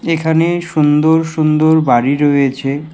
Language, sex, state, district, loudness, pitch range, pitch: Bengali, male, West Bengal, Alipurduar, -13 LUFS, 145-160 Hz, 155 Hz